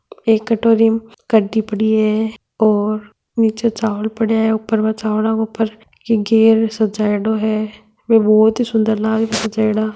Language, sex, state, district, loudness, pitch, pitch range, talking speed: Marwari, female, Rajasthan, Nagaur, -16 LUFS, 220 Hz, 215-225 Hz, 165 wpm